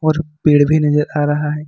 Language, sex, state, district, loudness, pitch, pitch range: Hindi, male, Jharkhand, Ranchi, -15 LUFS, 150 Hz, 150-155 Hz